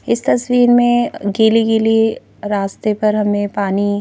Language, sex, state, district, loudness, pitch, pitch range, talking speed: Hindi, female, Madhya Pradesh, Bhopal, -15 LUFS, 215 Hz, 205-225 Hz, 120 wpm